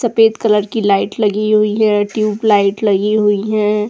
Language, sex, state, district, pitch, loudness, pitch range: Hindi, female, Uttar Pradesh, Jyotiba Phule Nagar, 210 Hz, -14 LUFS, 205-215 Hz